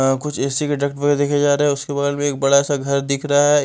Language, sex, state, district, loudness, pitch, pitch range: Hindi, male, Punjab, Fazilka, -18 LUFS, 145 Hz, 140-145 Hz